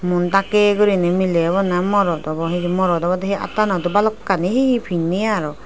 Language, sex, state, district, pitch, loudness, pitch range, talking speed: Chakma, female, Tripura, Dhalai, 185 Hz, -18 LUFS, 175-205 Hz, 190 wpm